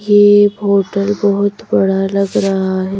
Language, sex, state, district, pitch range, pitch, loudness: Hindi, female, Madhya Pradesh, Bhopal, 195-205 Hz, 200 Hz, -13 LUFS